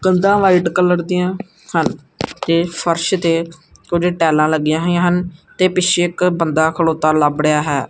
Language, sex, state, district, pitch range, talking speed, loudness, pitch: Punjabi, male, Punjab, Kapurthala, 160-180 Hz, 160 wpm, -16 LUFS, 175 Hz